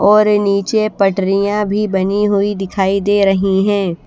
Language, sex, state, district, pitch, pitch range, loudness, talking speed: Hindi, female, Bihar, West Champaran, 200 Hz, 195-205 Hz, -14 LUFS, 160 wpm